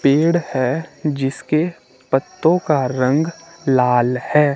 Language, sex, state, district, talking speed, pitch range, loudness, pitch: Hindi, male, Himachal Pradesh, Shimla, 105 wpm, 130-160 Hz, -18 LUFS, 140 Hz